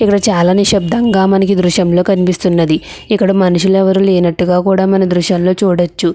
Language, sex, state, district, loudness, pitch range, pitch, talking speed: Telugu, female, Andhra Pradesh, Chittoor, -12 LUFS, 180-195 Hz, 185 Hz, 155 wpm